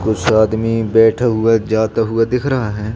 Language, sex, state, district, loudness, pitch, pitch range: Hindi, male, Madhya Pradesh, Katni, -15 LUFS, 110 Hz, 110-115 Hz